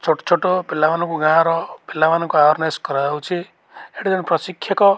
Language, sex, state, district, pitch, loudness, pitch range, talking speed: Odia, male, Odisha, Malkangiri, 165 Hz, -18 LUFS, 155-185 Hz, 120 wpm